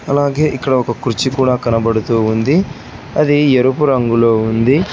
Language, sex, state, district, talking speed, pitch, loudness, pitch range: Telugu, male, Telangana, Hyderabad, 135 wpm, 130 Hz, -14 LUFS, 115-140 Hz